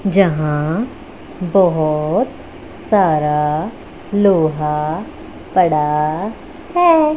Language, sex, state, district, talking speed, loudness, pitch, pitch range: Hindi, female, Punjab, Pathankot, 50 wpm, -16 LUFS, 180 Hz, 155-220 Hz